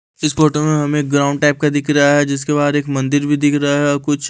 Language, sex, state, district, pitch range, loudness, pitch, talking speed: Hindi, male, Haryana, Rohtak, 145-150 Hz, -15 LUFS, 145 Hz, 280 wpm